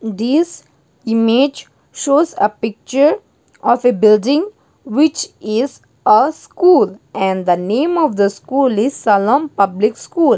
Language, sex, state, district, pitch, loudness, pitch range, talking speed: English, female, Nagaland, Dimapur, 245 Hz, -15 LUFS, 215-295 Hz, 125 wpm